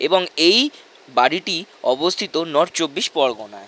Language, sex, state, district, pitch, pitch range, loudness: Bengali, male, West Bengal, North 24 Parganas, 180 Hz, 165-190 Hz, -19 LUFS